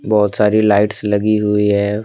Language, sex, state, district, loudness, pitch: Hindi, male, Jharkhand, Deoghar, -15 LUFS, 105 Hz